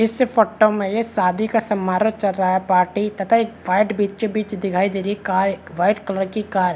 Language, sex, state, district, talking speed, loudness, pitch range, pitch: Hindi, male, Chhattisgarh, Rajnandgaon, 240 wpm, -20 LUFS, 190-215 Hz, 205 Hz